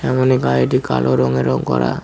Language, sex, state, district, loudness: Bengali, male, West Bengal, Cooch Behar, -16 LUFS